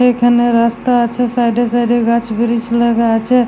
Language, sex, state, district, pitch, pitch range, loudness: Bengali, female, West Bengal, Jalpaiguri, 235 Hz, 235-240 Hz, -13 LUFS